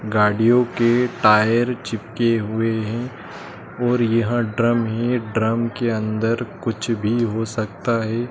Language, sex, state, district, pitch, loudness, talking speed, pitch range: Hindi, male, Madhya Pradesh, Dhar, 115 Hz, -20 LUFS, 130 wpm, 110-120 Hz